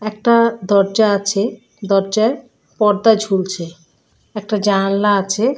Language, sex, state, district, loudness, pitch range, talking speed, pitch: Bengali, female, West Bengal, Malda, -16 LUFS, 195-220 Hz, 85 wpm, 205 Hz